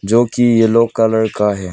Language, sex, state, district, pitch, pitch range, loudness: Hindi, male, Arunachal Pradesh, Lower Dibang Valley, 115 Hz, 105-115 Hz, -14 LUFS